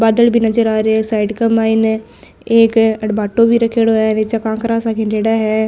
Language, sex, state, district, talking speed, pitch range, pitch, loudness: Marwari, female, Rajasthan, Nagaur, 210 wpm, 220-230 Hz, 225 Hz, -14 LUFS